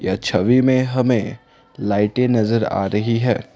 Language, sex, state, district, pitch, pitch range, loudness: Hindi, male, Assam, Kamrup Metropolitan, 115 Hz, 105-125 Hz, -18 LUFS